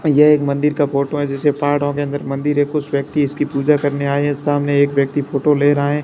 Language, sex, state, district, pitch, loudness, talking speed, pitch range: Hindi, male, Rajasthan, Barmer, 145 Hz, -17 LUFS, 270 wpm, 140-150 Hz